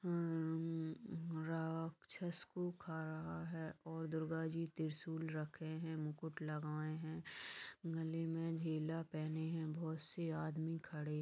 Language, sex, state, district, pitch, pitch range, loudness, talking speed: Magahi, female, Bihar, Gaya, 160 Hz, 160-165 Hz, -45 LUFS, 135 wpm